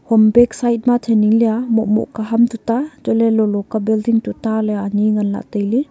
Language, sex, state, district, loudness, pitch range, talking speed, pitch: Wancho, female, Arunachal Pradesh, Longding, -16 LUFS, 215-235 Hz, 235 wpm, 225 Hz